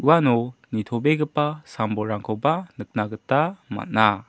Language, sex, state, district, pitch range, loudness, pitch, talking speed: Garo, male, Meghalaya, South Garo Hills, 110-150 Hz, -24 LUFS, 125 Hz, 85 wpm